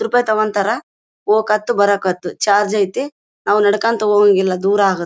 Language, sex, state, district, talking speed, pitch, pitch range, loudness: Kannada, female, Karnataka, Bellary, 180 wpm, 205 Hz, 200-215 Hz, -16 LUFS